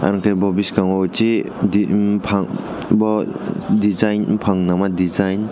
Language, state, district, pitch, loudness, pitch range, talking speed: Kokborok, Tripura, West Tripura, 100 Hz, -18 LUFS, 95-105 Hz, 130 wpm